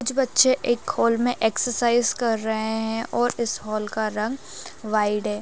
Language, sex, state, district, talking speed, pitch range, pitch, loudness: Hindi, female, Bihar, Darbhanga, 175 wpm, 215-245 Hz, 230 Hz, -23 LUFS